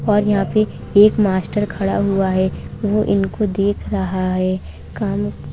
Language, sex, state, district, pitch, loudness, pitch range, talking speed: Hindi, female, Uttar Pradesh, Budaun, 195 Hz, -18 LUFS, 185-205 Hz, 165 wpm